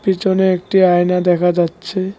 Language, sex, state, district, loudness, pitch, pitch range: Bengali, male, West Bengal, Cooch Behar, -15 LUFS, 185 Hz, 175-190 Hz